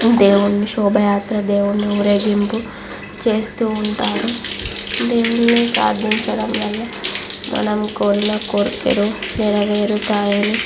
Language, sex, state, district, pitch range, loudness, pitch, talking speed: Telugu, female, Andhra Pradesh, Visakhapatnam, 205-220 Hz, -17 LUFS, 210 Hz, 80 wpm